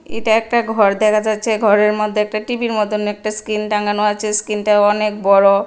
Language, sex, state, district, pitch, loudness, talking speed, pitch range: Bengali, female, Tripura, West Tripura, 210 Hz, -16 LUFS, 180 wpm, 210-215 Hz